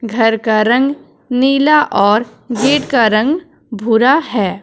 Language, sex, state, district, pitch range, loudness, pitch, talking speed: Hindi, female, Jharkhand, Deoghar, 220-275 Hz, -13 LUFS, 240 Hz, 130 wpm